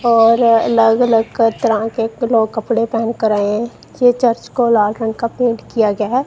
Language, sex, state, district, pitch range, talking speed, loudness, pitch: Hindi, female, Punjab, Kapurthala, 225-235 Hz, 190 wpm, -15 LUFS, 230 Hz